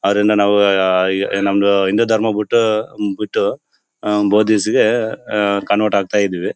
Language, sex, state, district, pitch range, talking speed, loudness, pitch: Kannada, male, Karnataka, Bellary, 100-105 Hz, 130 wpm, -16 LUFS, 100 Hz